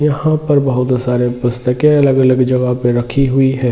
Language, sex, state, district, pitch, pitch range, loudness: Hindi, male, Jharkhand, Jamtara, 130 Hz, 125-140 Hz, -13 LUFS